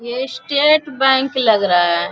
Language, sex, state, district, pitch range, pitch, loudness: Hindi, female, Bihar, Bhagalpur, 220-275 Hz, 265 Hz, -15 LUFS